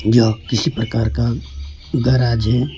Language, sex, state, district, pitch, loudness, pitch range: Hindi, male, West Bengal, Alipurduar, 115 Hz, -18 LUFS, 110-120 Hz